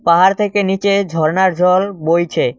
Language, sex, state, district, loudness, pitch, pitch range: Bengali, male, West Bengal, Cooch Behar, -14 LUFS, 185 Hz, 170-200 Hz